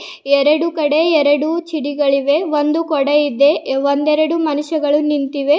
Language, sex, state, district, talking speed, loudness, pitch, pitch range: Kannada, female, Karnataka, Bidar, 105 wpm, -15 LUFS, 295 Hz, 285-315 Hz